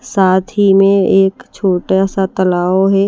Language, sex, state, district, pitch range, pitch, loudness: Hindi, female, Bihar, Kaimur, 190-195 Hz, 195 Hz, -13 LUFS